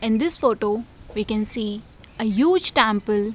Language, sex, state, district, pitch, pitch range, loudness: Hindi, female, Uttarakhand, Tehri Garhwal, 220 Hz, 210-235 Hz, -20 LUFS